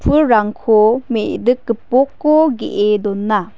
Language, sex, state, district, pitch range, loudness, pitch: Garo, female, Meghalaya, West Garo Hills, 210-265 Hz, -15 LUFS, 225 Hz